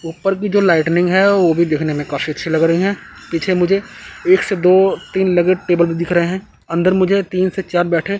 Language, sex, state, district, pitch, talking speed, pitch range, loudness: Hindi, male, Chandigarh, Chandigarh, 180 Hz, 225 wpm, 170-195 Hz, -16 LUFS